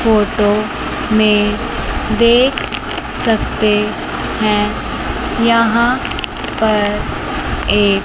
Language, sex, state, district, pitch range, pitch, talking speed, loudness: Hindi, male, Chandigarh, Chandigarh, 210-230 Hz, 215 Hz, 60 wpm, -15 LUFS